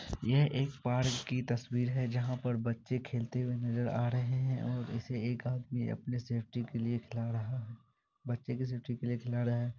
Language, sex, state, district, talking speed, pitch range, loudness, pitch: Hindi, male, Bihar, Kishanganj, 210 wpm, 120-125 Hz, -35 LUFS, 120 Hz